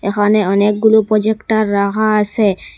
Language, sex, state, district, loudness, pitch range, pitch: Bengali, female, Assam, Hailakandi, -14 LUFS, 205-220 Hz, 210 Hz